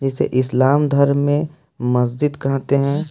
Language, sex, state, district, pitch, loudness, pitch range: Hindi, male, Jharkhand, Ranchi, 140 Hz, -18 LUFS, 130-145 Hz